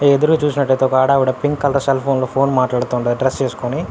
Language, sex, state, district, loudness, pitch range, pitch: Telugu, male, Andhra Pradesh, Anantapur, -16 LUFS, 130-140 Hz, 135 Hz